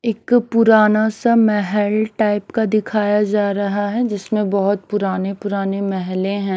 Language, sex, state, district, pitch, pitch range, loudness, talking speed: Hindi, female, Himachal Pradesh, Shimla, 210 Hz, 200-215 Hz, -17 LUFS, 145 wpm